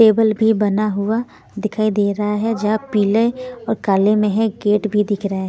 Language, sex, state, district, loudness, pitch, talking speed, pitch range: Hindi, female, Bihar, Patna, -18 LUFS, 215 Hz, 205 wpm, 205-220 Hz